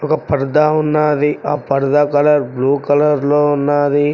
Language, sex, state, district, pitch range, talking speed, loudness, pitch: Telugu, male, Telangana, Mahabubabad, 145-150 Hz, 130 wpm, -14 LUFS, 145 Hz